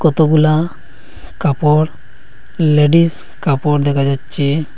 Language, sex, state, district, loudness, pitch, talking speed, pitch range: Bengali, male, Assam, Hailakandi, -14 LUFS, 150 Hz, 75 wpm, 140-155 Hz